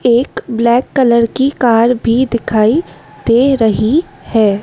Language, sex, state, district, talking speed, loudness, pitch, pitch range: Hindi, female, Madhya Pradesh, Dhar, 130 wpm, -13 LUFS, 235 Hz, 220-250 Hz